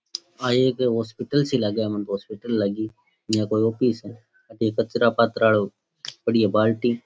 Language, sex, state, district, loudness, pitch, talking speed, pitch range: Rajasthani, male, Rajasthan, Churu, -23 LUFS, 110 Hz, 180 wpm, 105-120 Hz